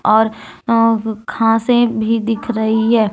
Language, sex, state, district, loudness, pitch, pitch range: Hindi, female, Jharkhand, Deoghar, -15 LUFS, 225 Hz, 220-230 Hz